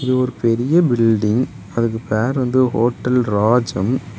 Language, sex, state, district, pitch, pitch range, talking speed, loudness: Tamil, male, Tamil Nadu, Kanyakumari, 120 Hz, 110-130 Hz, 155 wpm, -17 LUFS